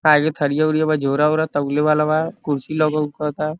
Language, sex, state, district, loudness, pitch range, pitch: Bhojpuri, male, Uttar Pradesh, Deoria, -19 LUFS, 150-155 Hz, 150 Hz